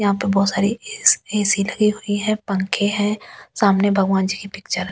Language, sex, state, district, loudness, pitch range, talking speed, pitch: Hindi, female, Delhi, New Delhi, -19 LUFS, 195-210 Hz, 205 wpm, 200 Hz